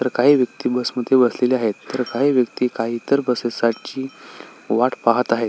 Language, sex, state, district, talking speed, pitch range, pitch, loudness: Marathi, male, Maharashtra, Sindhudurg, 175 wpm, 115-130 Hz, 125 Hz, -19 LUFS